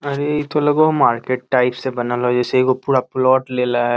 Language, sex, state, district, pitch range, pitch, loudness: Magahi, male, Bihar, Lakhisarai, 125-140 Hz, 130 Hz, -17 LUFS